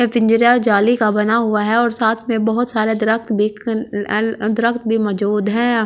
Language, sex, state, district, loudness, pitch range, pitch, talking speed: Hindi, female, Delhi, New Delhi, -16 LUFS, 215-230 Hz, 225 Hz, 175 wpm